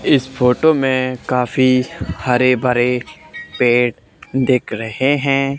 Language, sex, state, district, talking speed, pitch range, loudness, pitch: Hindi, male, Haryana, Charkhi Dadri, 105 wpm, 125-135 Hz, -16 LUFS, 130 Hz